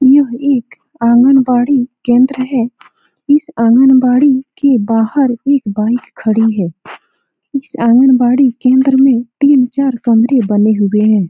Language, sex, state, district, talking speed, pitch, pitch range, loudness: Hindi, female, Bihar, Saran, 115 wpm, 250 Hz, 230-270 Hz, -11 LUFS